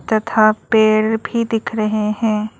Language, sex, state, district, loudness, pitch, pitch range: Hindi, female, Arunachal Pradesh, Lower Dibang Valley, -17 LUFS, 220 Hz, 215-225 Hz